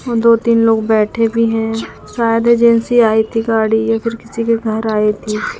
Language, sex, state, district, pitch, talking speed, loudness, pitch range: Hindi, female, Madhya Pradesh, Umaria, 225 Hz, 205 wpm, -14 LUFS, 220-230 Hz